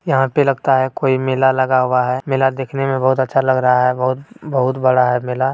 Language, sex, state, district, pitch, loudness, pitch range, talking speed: Maithili, male, Bihar, Bhagalpur, 130 Hz, -16 LUFS, 130-135 Hz, 240 wpm